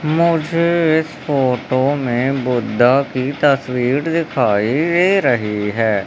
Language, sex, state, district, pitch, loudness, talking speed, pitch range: Hindi, male, Madhya Pradesh, Umaria, 135 Hz, -16 LUFS, 110 wpm, 125-160 Hz